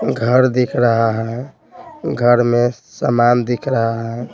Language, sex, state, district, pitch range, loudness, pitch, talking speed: Hindi, male, Bihar, Patna, 115-130 Hz, -16 LUFS, 120 Hz, 140 wpm